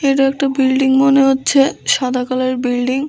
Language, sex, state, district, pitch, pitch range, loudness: Bengali, female, Tripura, West Tripura, 270 Hz, 255-275 Hz, -14 LUFS